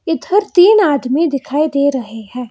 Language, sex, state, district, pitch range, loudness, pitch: Hindi, female, Karnataka, Bangalore, 260-335 Hz, -13 LUFS, 290 Hz